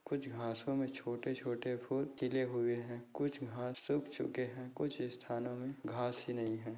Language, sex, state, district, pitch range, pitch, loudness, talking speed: Hindi, male, Maharashtra, Dhule, 120-135 Hz, 125 Hz, -40 LUFS, 185 wpm